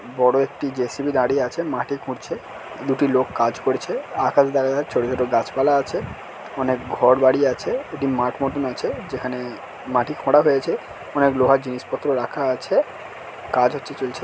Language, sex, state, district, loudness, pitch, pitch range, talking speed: Bengali, male, West Bengal, Dakshin Dinajpur, -21 LUFS, 135 Hz, 125-140 Hz, 165 wpm